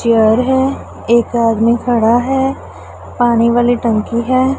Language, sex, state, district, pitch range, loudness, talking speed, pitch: Hindi, female, Punjab, Pathankot, 230-255 Hz, -13 LUFS, 130 wpm, 235 Hz